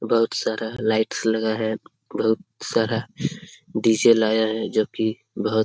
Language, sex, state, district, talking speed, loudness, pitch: Hindi, male, Bihar, Jamui, 150 wpm, -23 LUFS, 110 Hz